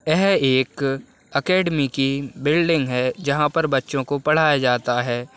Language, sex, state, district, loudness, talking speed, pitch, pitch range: Hindi, male, Chhattisgarh, Raigarh, -20 LUFS, 145 wpm, 140 Hz, 130-155 Hz